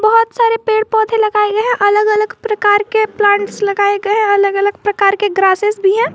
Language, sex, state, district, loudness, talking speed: Hindi, female, Jharkhand, Garhwa, -13 LUFS, 215 wpm